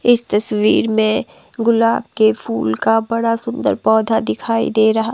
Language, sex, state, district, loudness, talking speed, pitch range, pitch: Hindi, female, Himachal Pradesh, Shimla, -16 LUFS, 150 wpm, 215-230 Hz, 220 Hz